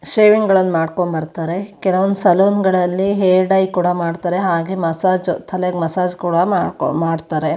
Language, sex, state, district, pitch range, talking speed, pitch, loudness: Kannada, female, Karnataka, Shimoga, 170-190 Hz, 145 wpm, 180 Hz, -16 LUFS